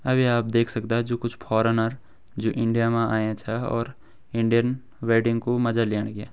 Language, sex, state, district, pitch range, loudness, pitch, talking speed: Garhwali, male, Uttarakhand, Uttarkashi, 110-120 Hz, -24 LUFS, 115 Hz, 170 wpm